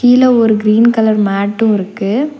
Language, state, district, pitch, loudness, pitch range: Tamil, Tamil Nadu, Nilgiris, 220 Hz, -12 LUFS, 205-240 Hz